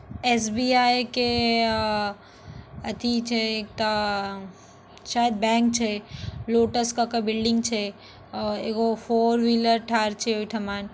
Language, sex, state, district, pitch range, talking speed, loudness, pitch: Maithili, female, Bihar, Darbhanga, 210-235 Hz, 125 wpm, -24 LUFS, 225 Hz